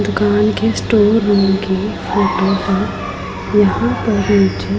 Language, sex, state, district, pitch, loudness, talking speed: Hindi, female, Punjab, Pathankot, 190 Hz, -15 LUFS, 125 wpm